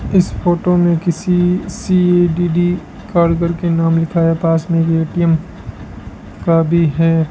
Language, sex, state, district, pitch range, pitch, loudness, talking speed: Hindi, male, Rajasthan, Bikaner, 165-175 Hz, 170 Hz, -15 LUFS, 150 wpm